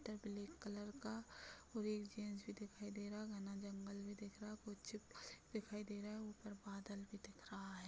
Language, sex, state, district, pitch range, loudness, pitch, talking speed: Hindi, female, Chhattisgarh, Bilaspur, 200-215 Hz, -51 LUFS, 205 Hz, 205 wpm